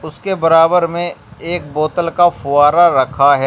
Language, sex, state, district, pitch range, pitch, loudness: Hindi, male, Uttar Pradesh, Shamli, 145-175 Hz, 165 Hz, -14 LUFS